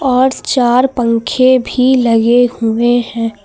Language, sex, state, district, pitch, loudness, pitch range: Hindi, female, Uttar Pradesh, Lucknow, 245 Hz, -12 LUFS, 230-255 Hz